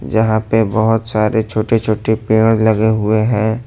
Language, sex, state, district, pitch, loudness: Hindi, male, Jharkhand, Ranchi, 110 Hz, -15 LUFS